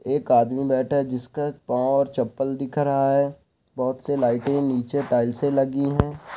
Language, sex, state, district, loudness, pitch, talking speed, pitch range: Hindi, male, Bihar, Saharsa, -23 LUFS, 135 Hz, 170 wpm, 130-140 Hz